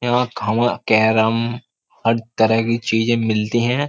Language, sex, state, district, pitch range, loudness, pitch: Hindi, male, Uttar Pradesh, Jyotiba Phule Nagar, 110-120 Hz, -18 LUFS, 115 Hz